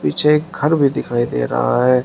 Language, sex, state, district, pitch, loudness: Hindi, male, Uttar Pradesh, Shamli, 125 Hz, -17 LUFS